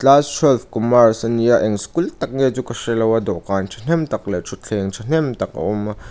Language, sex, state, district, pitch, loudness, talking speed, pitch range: Mizo, male, Mizoram, Aizawl, 115 Hz, -18 LUFS, 215 wpm, 105-135 Hz